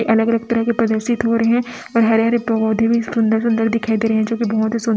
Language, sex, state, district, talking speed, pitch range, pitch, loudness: Hindi, female, Chhattisgarh, Raipur, 265 wpm, 225-230 Hz, 225 Hz, -17 LUFS